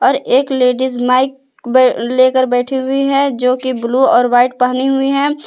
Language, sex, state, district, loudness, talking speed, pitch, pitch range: Hindi, female, Jharkhand, Palamu, -13 LUFS, 185 wpm, 260 Hz, 250-270 Hz